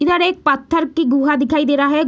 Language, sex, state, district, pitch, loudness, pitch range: Hindi, female, Bihar, Madhepura, 300 Hz, -16 LUFS, 285-325 Hz